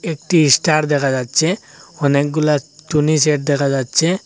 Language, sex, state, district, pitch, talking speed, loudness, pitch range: Bengali, male, Assam, Hailakandi, 150 Hz, 110 wpm, -16 LUFS, 140-160 Hz